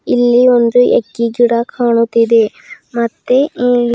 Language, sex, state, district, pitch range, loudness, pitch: Kannada, female, Karnataka, Bidar, 235-245 Hz, -12 LUFS, 240 Hz